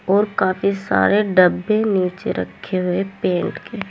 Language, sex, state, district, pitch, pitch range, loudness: Hindi, female, Uttar Pradesh, Saharanpur, 190 Hz, 180-200 Hz, -19 LUFS